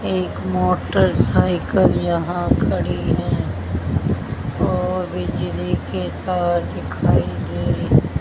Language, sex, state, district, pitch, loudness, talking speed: Hindi, male, Haryana, Charkhi Dadri, 90 Hz, -20 LUFS, 90 wpm